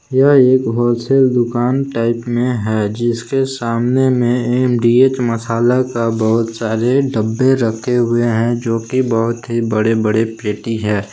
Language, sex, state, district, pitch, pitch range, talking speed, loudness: Hindi, male, Jharkhand, Palamu, 120 Hz, 115-125 Hz, 145 wpm, -15 LUFS